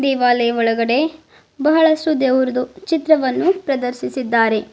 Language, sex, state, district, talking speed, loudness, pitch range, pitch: Kannada, female, Karnataka, Bidar, 75 wpm, -17 LUFS, 245-315 Hz, 260 Hz